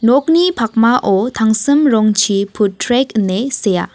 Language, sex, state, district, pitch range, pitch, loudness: Garo, female, Meghalaya, West Garo Hills, 205-255 Hz, 225 Hz, -14 LUFS